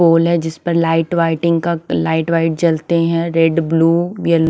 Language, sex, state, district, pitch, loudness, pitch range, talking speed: Hindi, female, Himachal Pradesh, Shimla, 165 Hz, -15 LUFS, 165-170 Hz, 200 wpm